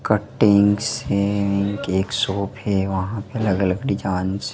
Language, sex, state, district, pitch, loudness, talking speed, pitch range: Hindi, male, Madhya Pradesh, Dhar, 100 Hz, -21 LUFS, 145 wpm, 95-105 Hz